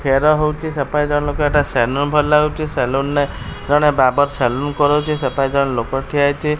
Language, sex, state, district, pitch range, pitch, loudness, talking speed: Odia, male, Odisha, Khordha, 135-150 Hz, 145 Hz, -17 LUFS, 180 wpm